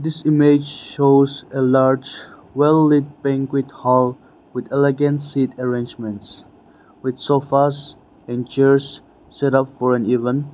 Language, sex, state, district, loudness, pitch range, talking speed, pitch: English, male, Nagaland, Dimapur, -18 LUFS, 125-145 Hz, 125 wpm, 135 Hz